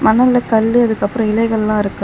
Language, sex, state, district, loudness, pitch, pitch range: Tamil, female, Tamil Nadu, Chennai, -14 LUFS, 225 Hz, 215-235 Hz